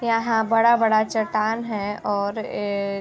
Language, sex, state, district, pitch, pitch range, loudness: Hindi, female, Bihar, Sitamarhi, 215 Hz, 205-225 Hz, -22 LUFS